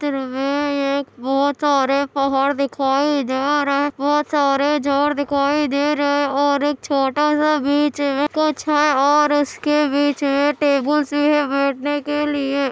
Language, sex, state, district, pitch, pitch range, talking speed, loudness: Hindi, male, Andhra Pradesh, Anantapur, 285 Hz, 275-295 Hz, 155 wpm, -18 LUFS